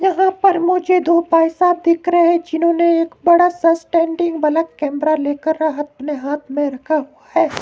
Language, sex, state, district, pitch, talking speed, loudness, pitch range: Hindi, male, Himachal Pradesh, Shimla, 330 Hz, 175 wpm, -16 LUFS, 305-345 Hz